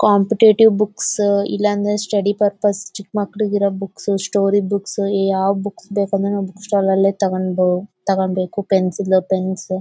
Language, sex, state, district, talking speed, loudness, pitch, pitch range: Kannada, female, Karnataka, Bellary, 145 wpm, -18 LUFS, 200 Hz, 190-205 Hz